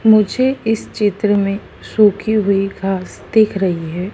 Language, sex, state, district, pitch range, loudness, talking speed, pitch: Hindi, female, Madhya Pradesh, Dhar, 195-220 Hz, -16 LUFS, 145 wpm, 205 Hz